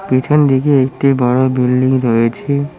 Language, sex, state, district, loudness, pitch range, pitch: Bengali, male, West Bengal, Cooch Behar, -13 LUFS, 125-140 Hz, 130 Hz